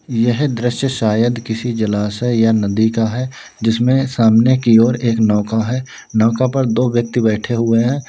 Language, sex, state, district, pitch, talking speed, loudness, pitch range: Hindi, male, Uttar Pradesh, Lalitpur, 115 Hz, 170 wpm, -16 LUFS, 110-125 Hz